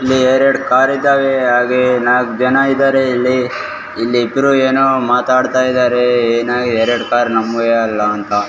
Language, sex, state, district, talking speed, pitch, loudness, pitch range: Kannada, male, Karnataka, Raichur, 150 wpm, 125 Hz, -13 LUFS, 120-130 Hz